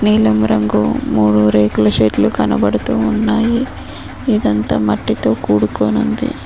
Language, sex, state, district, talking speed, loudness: Telugu, female, Telangana, Mahabubabad, 95 wpm, -15 LUFS